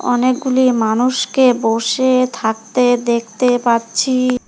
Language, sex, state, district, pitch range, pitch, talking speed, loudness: Bengali, female, West Bengal, Alipurduar, 230-255 Hz, 245 Hz, 80 wpm, -15 LUFS